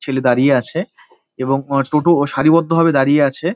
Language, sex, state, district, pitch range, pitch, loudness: Bengali, male, West Bengal, Dakshin Dinajpur, 135-165 Hz, 145 Hz, -15 LUFS